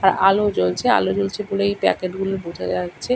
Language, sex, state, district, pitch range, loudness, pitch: Bengali, male, West Bengal, Kolkata, 170-200 Hz, -20 LUFS, 195 Hz